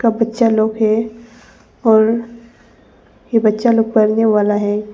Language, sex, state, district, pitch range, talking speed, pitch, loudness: Hindi, female, Arunachal Pradesh, Papum Pare, 215-230 Hz, 135 wpm, 225 Hz, -15 LUFS